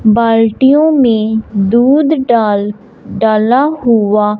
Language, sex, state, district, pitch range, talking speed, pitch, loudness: Hindi, male, Punjab, Fazilka, 215-260 Hz, 80 wpm, 225 Hz, -11 LUFS